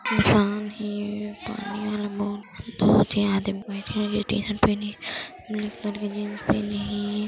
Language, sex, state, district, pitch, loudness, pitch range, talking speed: Hindi, male, Chhattisgarh, Kabirdham, 210 Hz, -25 LUFS, 205-210 Hz, 150 wpm